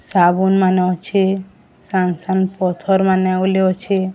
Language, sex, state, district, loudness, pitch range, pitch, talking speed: Odia, female, Odisha, Sambalpur, -16 LUFS, 185-190 Hz, 190 Hz, 115 wpm